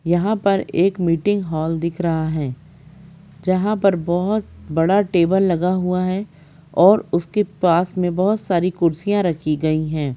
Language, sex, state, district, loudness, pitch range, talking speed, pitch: Hindi, female, Chhattisgarh, Rajnandgaon, -19 LUFS, 165-190 Hz, 155 wpm, 175 Hz